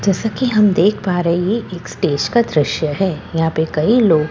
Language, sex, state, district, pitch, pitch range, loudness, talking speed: Hindi, female, Bihar, Katihar, 185 Hz, 160-215 Hz, -16 LUFS, 265 wpm